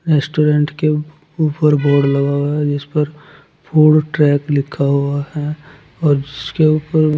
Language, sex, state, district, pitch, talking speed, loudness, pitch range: Hindi, male, Uttar Pradesh, Saharanpur, 150 Hz, 150 wpm, -16 LUFS, 145-155 Hz